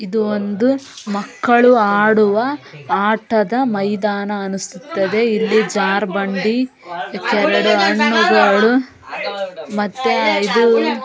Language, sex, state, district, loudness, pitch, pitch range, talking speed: Kannada, female, Karnataka, Raichur, -16 LUFS, 210 Hz, 200-230 Hz, 70 wpm